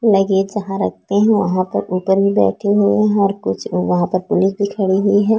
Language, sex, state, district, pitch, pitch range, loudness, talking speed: Hindi, female, Chhattisgarh, Korba, 195 Hz, 190-205 Hz, -16 LUFS, 235 wpm